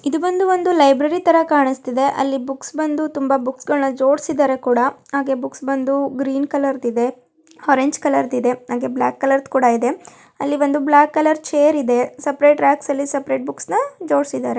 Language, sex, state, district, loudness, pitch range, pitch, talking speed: Kannada, female, Karnataka, Mysore, -18 LUFS, 265-295 Hz, 275 Hz, 160 wpm